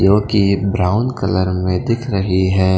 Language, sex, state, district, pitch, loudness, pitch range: Hindi, male, Himachal Pradesh, Shimla, 95 Hz, -16 LUFS, 95-105 Hz